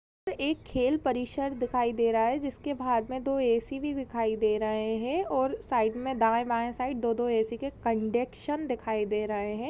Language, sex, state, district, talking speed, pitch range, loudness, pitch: Hindi, female, Chhattisgarh, Raigarh, 200 wpm, 225-265 Hz, -29 LUFS, 240 Hz